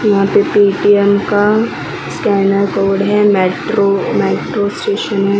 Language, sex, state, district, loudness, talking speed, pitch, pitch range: Hindi, female, Maharashtra, Mumbai Suburban, -13 LUFS, 120 wpm, 200 Hz, 195-205 Hz